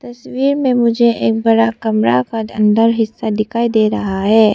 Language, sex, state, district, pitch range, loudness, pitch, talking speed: Hindi, female, Arunachal Pradesh, Papum Pare, 215-230 Hz, -14 LUFS, 225 Hz, 170 wpm